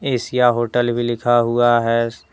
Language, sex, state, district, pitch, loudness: Hindi, male, Jharkhand, Deoghar, 120 Hz, -17 LUFS